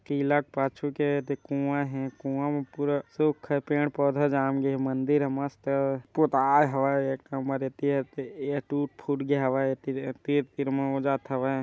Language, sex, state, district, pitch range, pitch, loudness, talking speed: Chhattisgarhi, male, Chhattisgarh, Bilaspur, 135-145 Hz, 140 Hz, -28 LUFS, 200 wpm